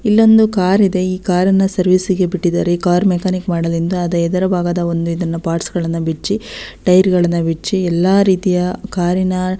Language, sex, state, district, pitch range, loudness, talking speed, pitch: Kannada, female, Karnataka, Belgaum, 175-190 Hz, -15 LUFS, 125 wpm, 180 Hz